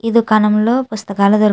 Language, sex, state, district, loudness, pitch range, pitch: Telugu, female, Andhra Pradesh, Chittoor, -14 LUFS, 210-230 Hz, 215 Hz